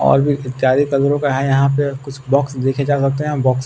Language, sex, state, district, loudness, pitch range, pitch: Hindi, male, Bihar, West Champaran, -17 LUFS, 130-145 Hz, 140 Hz